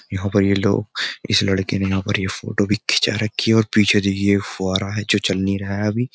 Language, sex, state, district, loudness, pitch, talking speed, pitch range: Hindi, male, Uttar Pradesh, Jyotiba Phule Nagar, -19 LUFS, 100 Hz, 265 wpm, 100-105 Hz